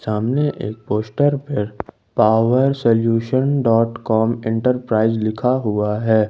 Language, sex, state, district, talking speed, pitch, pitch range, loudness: Hindi, male, Jharkhand, Ranchi, 115 wpm, 115 Hz, 110-130 Hz, -18 LUFS